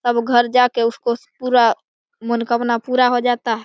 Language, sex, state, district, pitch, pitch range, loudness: Hindi, male, Bihar, Begusarai, 240 Hz, 235-245 Hz, -17 LUFS